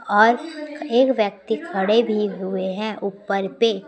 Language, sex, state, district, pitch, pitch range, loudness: Hindi, female, Chhattisgarh, Raipur, 215 Hz, 200-235 Hz, -21 LUFS